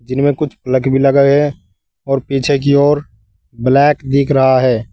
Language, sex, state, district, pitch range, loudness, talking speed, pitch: Hindi, male, Uttar Pradesh, Saharanpur, 125-140 Hz, -13 LUFS, 170 wpm, 135 Hz